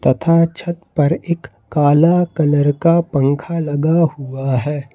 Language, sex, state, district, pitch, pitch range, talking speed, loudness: Hindi, male, Jharkhand, Ranchi, 150 Hz, 140-170 Hz, 135 wpm, -16 LUFS